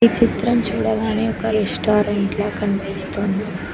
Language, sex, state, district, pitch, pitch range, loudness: Telugu, female, Telangana, Mahabubabad, 210 Hz, 200-220 Hz, -20 LUFS